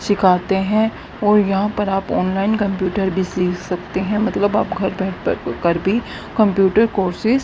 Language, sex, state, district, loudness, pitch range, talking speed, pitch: Hindi, female, Haryana, Rohtak, -18 LUFS, 185-210 Hz, 170 wpm, 195 Hz